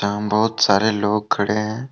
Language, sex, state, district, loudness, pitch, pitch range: Hindi, male, Jharkhand, Deoghar, -19 LUFS, 105 Hz, 105-110 Hz